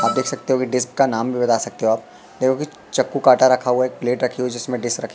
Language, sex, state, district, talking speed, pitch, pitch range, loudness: Hindi, male, Madhya Pradesh, Katni, 325 wpm, 125 Hz, 120-130 Hz, -19 LUFS